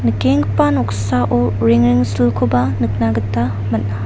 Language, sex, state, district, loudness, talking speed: Garo, female, Meghalaya, South Garo Hills, -16 LUFS, 90 wpm